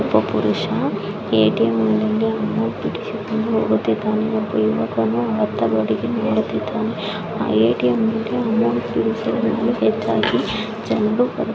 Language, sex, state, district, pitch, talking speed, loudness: Kannada, female, Karnataka, Mysore, 210 Hz, 90 wpm, -20 LUFS